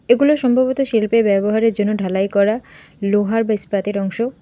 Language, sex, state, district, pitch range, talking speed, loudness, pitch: Bengali, female, West Bengal, Alipurduar, 200-235 Hz, 150 wpm, -17 LUFS, 215 Hz